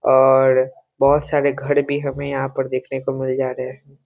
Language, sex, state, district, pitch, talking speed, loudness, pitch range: Hindi, male, Bihar, Muzaffarpur, 135 Hz, 205 wpm, -19 LUFS, 130-140 Hz